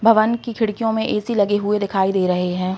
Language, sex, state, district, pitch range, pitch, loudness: Hindi, female, Uttar Pradesh, Hamirpur, 190-225 Hz, 210 Hz, -19 LUFS